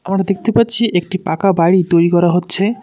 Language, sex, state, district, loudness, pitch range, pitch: Bengali, male, West Bengal, Cooch Behar, -14 LUFS, 175-195 Hz, 185 Hz